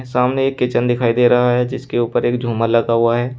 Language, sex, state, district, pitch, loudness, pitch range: Hindi, male, Uttar Pradesh, Shamli, 120 Hz, -16 LUFS, 115-125 Hz